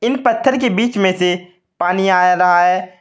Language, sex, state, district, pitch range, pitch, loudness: Hindi, male, Uttar Pradesh, Saharanpur, 180-230 Hz, 185 Hz, -15 LUFS